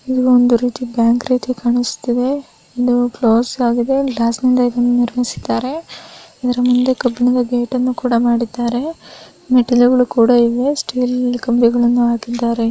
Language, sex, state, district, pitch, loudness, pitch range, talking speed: Kannada, female, Karnataka, Raichur, 245 Hz, -15 LUFS, 240-250 Hz, 125 wpm